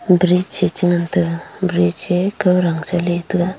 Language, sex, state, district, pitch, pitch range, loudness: Wancho, female, Arunachal Pradesh, Longding, 180 Hz, 175-180 Hz, -17 LUFS